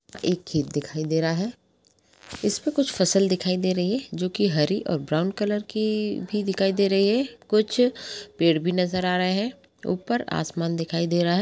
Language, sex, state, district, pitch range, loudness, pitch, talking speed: Hindi, female, Chhattisgarh, Balrampur, 170-210 Hz, -24 LUFS, 185 Hz, 195 wpm